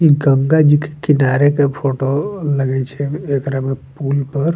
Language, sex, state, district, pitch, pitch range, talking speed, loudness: Bajjika, male, Bihar, Vaishali, 140 Hz, 135-145 Hz, 185 wpm, -16 LUFS